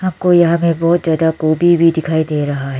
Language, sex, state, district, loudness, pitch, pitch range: Hindi, female, Arunachal Pradesh, Lower Dibang Valley, -14 LUFS, 165 Hz, 155-170 Hz